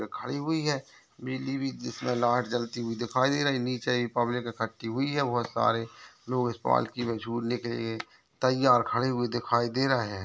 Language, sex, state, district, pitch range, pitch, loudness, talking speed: Hindi, male, Chhattisgarh, Raigarh, 120-130 Hz, 120 Hz, -29 LUFS, 200 wpm